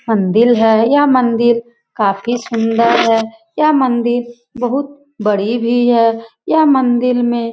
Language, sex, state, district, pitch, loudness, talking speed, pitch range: Hindi, female, Bihar, Lakhisarai, 240 Hz, -14 LUFS, 135 wpm, 225-250 Hz